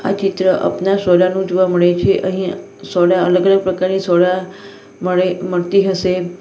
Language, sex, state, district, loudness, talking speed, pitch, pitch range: Gujarati, female, Gujarat, Valsad, -15 LUFS, 160 wpm, 185 Hz, 180-190 Hz